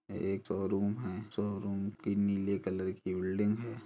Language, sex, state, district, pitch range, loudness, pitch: Hindi, male, Chhattisgarh, Kabirdham, 95-105 Hz, -35 LUFS, 100 Hz